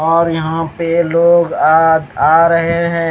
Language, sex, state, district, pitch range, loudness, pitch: Hindi, male, Chhattisgarh, Raipur, 160-170 Hz, -12 LUFS, 165 Hz